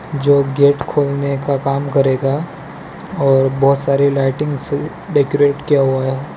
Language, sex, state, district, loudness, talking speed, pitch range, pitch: Hindi, male, Gujarat, Valsad, -16 LUFS, 140 wpm, 135-145 Hz, 140 Hz